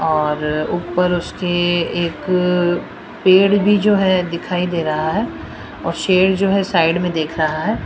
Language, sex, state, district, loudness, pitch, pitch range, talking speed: Hindi, female, Rajasthan, Jaipur, -17 LUFS, 175 Hz, 165-190 Hz, 160 wpm